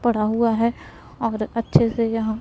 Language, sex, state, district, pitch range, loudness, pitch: Hindi, male, Punjab, Pathankot, 220-230 Hz, -21 LUFS, 230 Hz